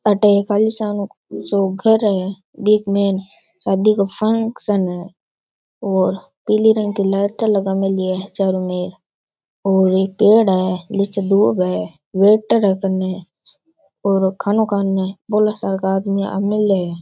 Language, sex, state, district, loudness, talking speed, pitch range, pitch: Rajasthani, male, Rajasthan, Churu, -17 LUFS, 100 wpm, 190-210 Hz, 195 Hz